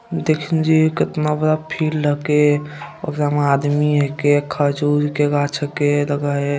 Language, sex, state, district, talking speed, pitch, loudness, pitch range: Hindi, male, Bihar, Madhepura, 125 wpm, 145 Hz, -18 LUFS, 145-155 Hz